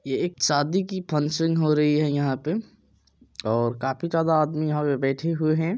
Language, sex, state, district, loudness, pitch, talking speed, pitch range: Maithili, male, Bihar, Supaul, -24 LUFS, 150 Hz, 200 wpm, 140-165 Hz